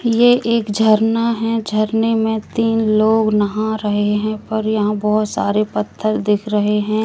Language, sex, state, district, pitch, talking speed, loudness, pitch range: Hindi, female, Madhya Pradesh, Katni, 215 Hz, 160 wpm, -17 LUFS, 210-225 Hz